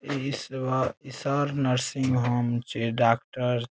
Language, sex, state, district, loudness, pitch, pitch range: Maithili, male, Bihar, Saharsa, -27 LUFS, 130 Hz, 120-135 Hz